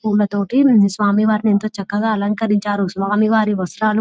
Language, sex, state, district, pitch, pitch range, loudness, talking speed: Telugu, female, Telangana, Nalgonda, 210 Hz, 200-215 Hz, -17 LUFS, 120 wpm